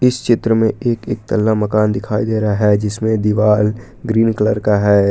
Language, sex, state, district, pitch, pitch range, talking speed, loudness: Hindi, male, Jharkhand, Palamu, 110 Hz, 105-115 Hz, 190 wpm, -16 LUFS